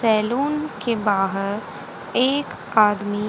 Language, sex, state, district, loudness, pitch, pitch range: Hindi, female, Haryana, Rohtak, -21 LUFS, 215 Hz, 205-255 Hz